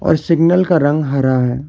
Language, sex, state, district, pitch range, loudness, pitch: Hindi, male, Karnataka, Bangalore, 135-165 Hz, -14 LUFS, 150 Hz